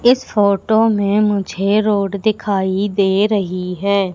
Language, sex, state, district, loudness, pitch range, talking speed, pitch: Hindi, female, Madhya Pradesh, Katni, -16 LUFS, 195-210 Hz, 130 wpm, 200 Hz